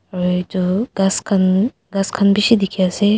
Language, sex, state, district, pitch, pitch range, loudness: Nagamese, female, Nagaland, Kohima, 195 Hz, 185-205 Hz, -17 LUFS